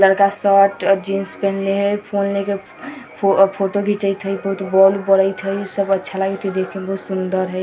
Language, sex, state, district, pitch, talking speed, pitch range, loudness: Hindi, female, Bihar, Vaishali, 195 Hz, 190 wpm, 195-200 Hz, -18 LUFS